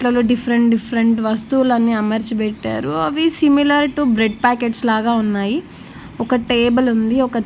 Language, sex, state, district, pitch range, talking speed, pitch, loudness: Telugu, female, Andhra Pradesh, Annamaya, 220-250 Hz, 145 wpm, 235 Hz, -17 LUFS